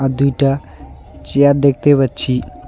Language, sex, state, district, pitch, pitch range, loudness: Bengali, male, West Bengal, Alipurduar, 135 Hz, 90-140 Hz, -15 LUFS